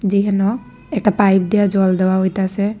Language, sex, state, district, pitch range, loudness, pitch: Bengali, female, Tripura, West Tripura, 190-210 Hz, -16 LUFS, 200 Hz